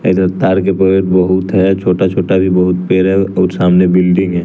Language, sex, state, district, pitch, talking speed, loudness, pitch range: Hindi, male, Bihar, West Champaran, 95 Hz, 200 wpm, -12 LUFS, 90-95 Hz